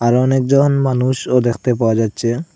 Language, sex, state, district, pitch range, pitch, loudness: Bengali, male, Assam, Hailakandi, 120-135 Hz, 125 Hz, -15 LUFS